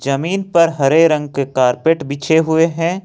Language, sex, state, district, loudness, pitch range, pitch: Hindi, male, Jharkhand, Ranchi, -15 LUFS, 140-165 Hz, 160 Hz